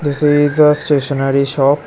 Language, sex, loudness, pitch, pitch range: English, male, -13 LUFS, 145 Hz, 140-150 Hz